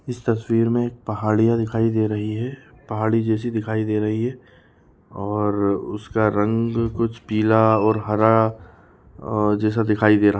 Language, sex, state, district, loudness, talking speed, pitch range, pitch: Hindi, male, Maharashtra, Nagpur, -21 LUFS, 150 wpm, 105-115 Hz, 110 Hz